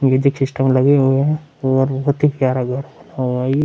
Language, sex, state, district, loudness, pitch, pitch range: Hindi, male, Bihar, Vaishali, -17 LUFS, 135 Hz, 130-140 Hz